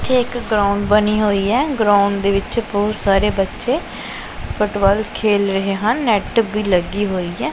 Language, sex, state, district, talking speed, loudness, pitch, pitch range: Punjabi, male, Punjab, Pathankot, 165 wpm, -17 LUFS, 210 Hz, 200-225 Hz